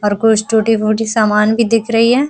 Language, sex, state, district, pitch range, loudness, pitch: Hindi, female, Bihar, Araria, 215-230 Hz, -13 LUFS, 225 Hz